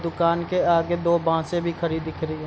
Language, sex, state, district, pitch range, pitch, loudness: Hindi, male, Bihar, Gopalganj, 165-170 Hz, 170 Hz, -23 LUFS